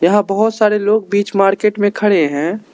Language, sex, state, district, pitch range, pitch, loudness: Hindi, male, Arunachal Pradesh, Lower Dibang Valley, 195-215 Hz, 205 Hz, -14 LUFS